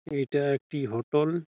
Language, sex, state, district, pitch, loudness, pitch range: Bengali, male, West Bengal, Malda, 145 Hz, -28 LUFS, 140-150 Hz